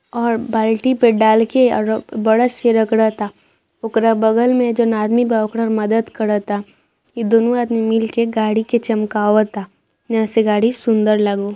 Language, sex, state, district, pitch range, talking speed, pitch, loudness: Bhojpuri, male, Bihar, Saran, 215-235 Hz, 160 wpm, 225 Hz, -16 LUFS